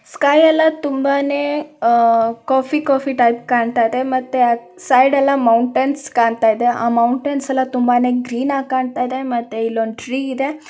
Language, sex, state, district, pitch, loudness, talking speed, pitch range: Kannada, female, Karnataka, Mysore, 255 Hz, -16 LUFS, 145 wpm, 235-275 Hz